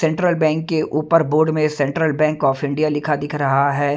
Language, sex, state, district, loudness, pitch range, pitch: Hindi, male, Chhattisgarh, Raipur, -18 LUFS, 145-160 Hz, 155 Hz